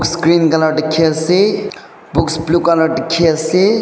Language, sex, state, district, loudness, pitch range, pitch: Nagamese, male, Nagaland, Dimapur, -14 LUFS, 160-180 Hz, 165 Hz